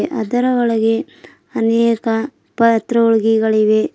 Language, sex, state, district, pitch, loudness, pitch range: Kannada, female, Karnataka, Bidar, 225 Hz, -16 LUFS, 225-235 Hz